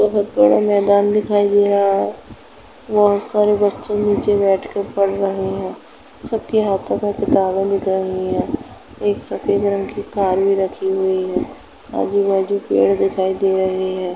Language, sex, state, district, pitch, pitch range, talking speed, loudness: Hindi, female, Uttar Pradesh, Etah, 200 Hz, 190-205 Hz, 160 wpm, -18 LUFS